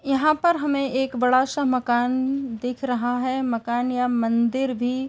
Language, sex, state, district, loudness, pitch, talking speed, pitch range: Hindi, female, Uttar Pradesh, Etah, -23 LUFS, 255 Hz, 175 wpm, 245-270 Hz